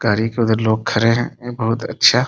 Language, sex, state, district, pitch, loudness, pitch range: Hindi, male, Bihar, Muzaffarpur, 115 Hz, -18 LUFS, 110-120 Hz